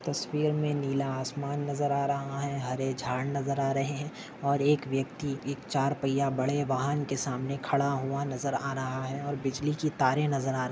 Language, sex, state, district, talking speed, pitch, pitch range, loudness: Hindi, male, Maharashtra, Dhule, 200 wpm, 140 Hz, 135-145 Hz, -30 LUFS